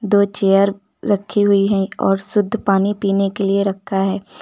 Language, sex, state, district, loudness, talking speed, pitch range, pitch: Hindi, female, Uttar Pradesh, Lucknow, -17 LUFS, 175 wpm, 195-205 Hz, 200 Hz